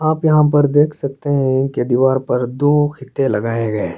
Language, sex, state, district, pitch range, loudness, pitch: Hindi, male, Chhattisgarh, Sarguja, 130-145 Hz, -16 LUFS, 140 Hz